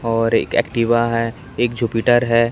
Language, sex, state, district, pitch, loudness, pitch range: Hindi, male, Chhattisgarh, Raipur, 115 Hz, -18 LUFS, 115-120 Hz